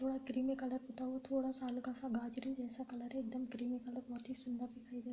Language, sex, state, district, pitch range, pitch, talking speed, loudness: Hindi, female, Uttar Pradesh, Deoria, 245-260 Hz, 255 Hz, 260 wpm, -43 LUFS